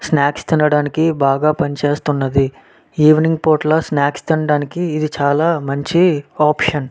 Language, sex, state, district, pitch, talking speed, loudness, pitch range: Telugu, male, Andhra Pradesh, Visakhapatnam, 150 Hz, 115 wpm, -16 LUFS, 145-160 Hz